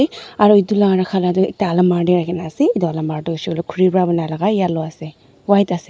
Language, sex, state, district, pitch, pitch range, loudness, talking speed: Nagamese, female, Nagaland, Dimapur, 180 Hz, 165-200 Hz, -17 LUFS, 245 wpm